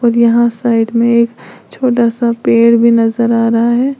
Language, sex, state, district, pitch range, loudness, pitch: Hindi, female, Uttar Pradesh, Lalitpur, 230-235 Hz, -11 LUFS, 235 Hz